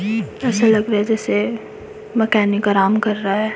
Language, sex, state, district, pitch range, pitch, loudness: Hindi, female, Himachal Pradesh, Shimla, 205-225 Hz, 215 Hz, -18 LUFS